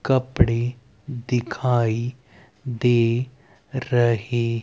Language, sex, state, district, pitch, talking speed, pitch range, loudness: Hindi, male, Haryana, Rohtak, 120 Hz, 50 wpm, 115-125 Hz, -22 LUFS